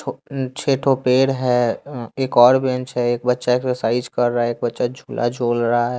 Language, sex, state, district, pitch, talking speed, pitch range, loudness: Hindi, male, Bihar, West Champaran, 125 Hz, 190 wpm, 120-130 Hz, -19 LUFS